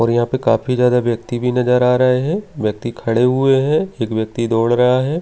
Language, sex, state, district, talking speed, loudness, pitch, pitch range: Hindi, male, Delhi, New Delhi, 230 wpm, -16 LUFS, 125 Hz, 115-130 Hz